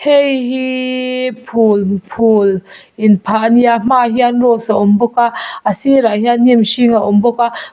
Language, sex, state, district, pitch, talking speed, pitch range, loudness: Mizo, female, Mizoram, Aizawl, 235 Hz, 210 wpm, 215-250 Hz, -12 LUFS